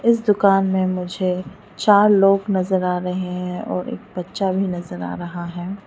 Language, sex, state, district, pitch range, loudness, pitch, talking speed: Hindi, female, Arunachal Pradesh, Lower Dibang Valley, 180-195 Hz, -20 LUFS, 185 Hz, 185 wpm